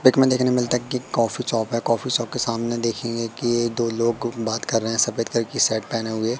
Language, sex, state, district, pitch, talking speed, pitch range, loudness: Hindi, male, Madhya Pradesh, Katni, 115 Hz, 265 wpm, 115-120 Hz, -22 LUFS